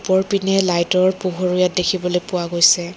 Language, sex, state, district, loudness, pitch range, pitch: Assamese, female, Assam, Kamrup Metropolitan, -18 LUFS, 175-185 Hz, 180 Hz